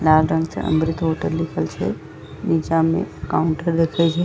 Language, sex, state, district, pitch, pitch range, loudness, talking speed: Maithili, female, Bihar, Madhepura, 160 Hz, 160-165 Hz, -21 LUFS, 170 wpm